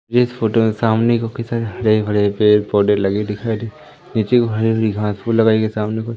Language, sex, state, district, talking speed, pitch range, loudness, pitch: Hindi, female, Madhya Pradesh, Umaria, 205 wpm, 105-115 Hz, -17 LUFS, 110 Hz